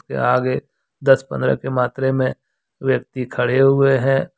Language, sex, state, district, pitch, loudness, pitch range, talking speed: Hindi, male, Jharkhand, Deoghar, 130 Hz, -19 LUFS, 130-135 Hz, 150 wpm